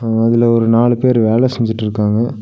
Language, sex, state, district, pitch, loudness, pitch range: Tamil, male, Tamil Nadu, Nilgiris, 115 Hz, -14 LUFS, 110-120 Hz